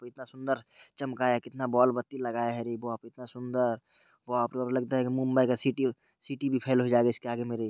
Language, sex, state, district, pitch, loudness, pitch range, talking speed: Maithili, male, Bihar, Purnia, 125 Hz, -30 LUFS, 120-130 Hz, 265 wpm